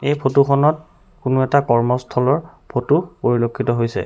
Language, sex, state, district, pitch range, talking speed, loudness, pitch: Assamese, male, Assam, Sonitpur, 125-145 Hz, 120 wpm, -18 LUFS, 130 Hz